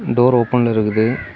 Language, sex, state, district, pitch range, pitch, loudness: Tamil, male, Tamil Nadu, Kanyakumari, 110-125 Hz, 115 Hz, -16 LUFS